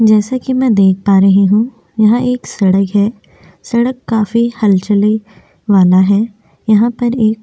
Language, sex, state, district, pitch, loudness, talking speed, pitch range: Hindi, female, Chhattisgarh, Korba, 215 Hz, -12 LUFS, 160 wpm, 200-235 Hz